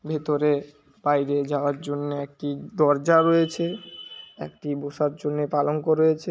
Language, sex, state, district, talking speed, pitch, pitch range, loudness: Bengali, male, West Bengal, Jhargram, 115 wpm, 145 Hz, 145-155 Hz, -24 LUFS